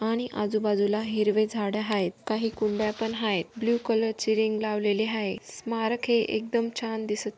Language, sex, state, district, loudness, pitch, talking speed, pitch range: Marathi, female, Maharashtra, Dhule, -27 LUFS, 220 Hz, 170 wpm, 210-225 Hz